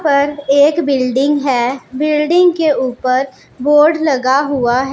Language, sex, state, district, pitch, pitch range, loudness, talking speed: Hindi, female, Punjab, Pathankot, 280 Hz, 260-300 Hz, -13 LUFS, 135 wpm